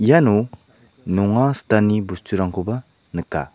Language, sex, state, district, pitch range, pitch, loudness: Garo, male, Meghalaya, South Garo Hills, 95-120 Hz, 105 Hz, -20 LUFS